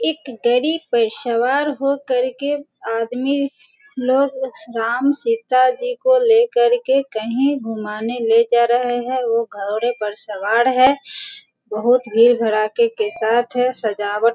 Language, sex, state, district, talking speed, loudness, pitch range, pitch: Hindi, female, Bihar, Sitamarhi, 130 wpm, -18 LUFS, 230-275 Hz, 245 Hz